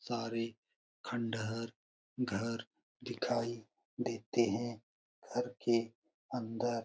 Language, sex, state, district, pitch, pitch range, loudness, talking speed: Hindi, male, Bihar, Lakhisarai, 115 Hz, 115-120 Hz, -38 LUFS, 85 wpm